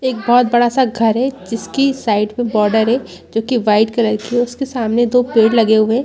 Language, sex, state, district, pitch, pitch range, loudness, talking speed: Hindi, female, Chhattisgarh, Rajnandgaon, 235 Hz, 220-245 Hz, -15 LUFS, 240 wpm